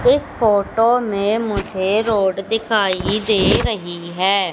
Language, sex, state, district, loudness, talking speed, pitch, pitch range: Hindi, female, Madhya Pradesh, Katni, -18 LUFS, 120 wpm, 205 Hz, 190-220 Hz